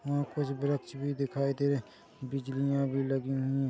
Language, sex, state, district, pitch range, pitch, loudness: Hindi, male, Chhattisgarh, Korba, 135-140 Hz, 140 Hz, -32 LUFS